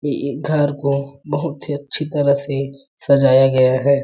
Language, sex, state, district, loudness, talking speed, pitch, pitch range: Hindi, male, Chhattisgarh, Balrampur, -17 LUFS, 165 wpm, 140 Hz, 140-145 Hz